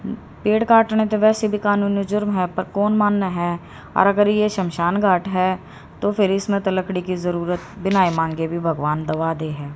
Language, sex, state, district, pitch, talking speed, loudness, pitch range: Hindi, female, Haryana, Rohtak, 190 Hz, 195 wpm, -20 LUFS, 175-205 Hz